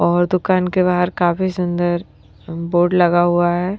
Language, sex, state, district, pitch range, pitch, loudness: Hindi, female, Haryana, Rohtak, 175-185 Hz, 175 Hz, -17 LUFS